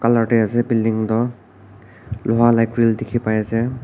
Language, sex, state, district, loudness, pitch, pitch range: Nagamese, male, Nagaland, Kohima, -18 LUFS, 115 Hz, 110-120 Hz